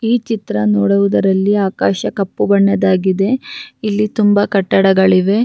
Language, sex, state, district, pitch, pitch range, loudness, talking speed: Kannada, female, Karnataka, Raichur, 195 Hz, 190-215 Hz, -14 LUFS, 100 wpm